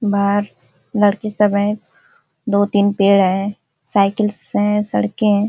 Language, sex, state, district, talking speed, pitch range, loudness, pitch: Hindi, female, Uttar Pradesh, Ghazipur, 140 wpm, 195-210 Hz, -17 LUFS, 200 Hz